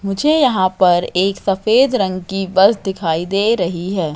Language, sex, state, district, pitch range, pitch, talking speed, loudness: Hindi, female, Madhya Pradesh, Katni, 185-200 Hz, 195 Hz, 175 wpm, -16 LUFS